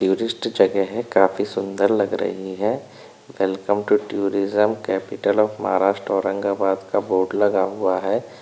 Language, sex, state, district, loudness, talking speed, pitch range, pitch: Hindi, male, Uttar Pradesh, Budaun, -21 LUFS, 140 wpm, 95-105 Hz, 100 Hz